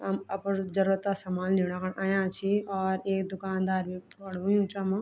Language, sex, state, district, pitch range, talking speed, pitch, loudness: Garhwali, female, Uttarakhand, Tehri Garhwal, 190-195 Hz, 190 wpm, 195 Hz, -30 LUFS